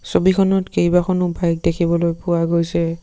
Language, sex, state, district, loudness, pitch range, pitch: Assamese, male, Assam, Sonitpur, -18 LUFS, 170-180 Hz, 170 Hz